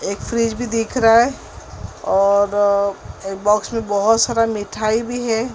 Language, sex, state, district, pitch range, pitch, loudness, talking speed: Hindi, female, Maharashtra, Mumbai Suburban, 205-230 Hz, 225 Hz, -18 LUFS, 160 wpm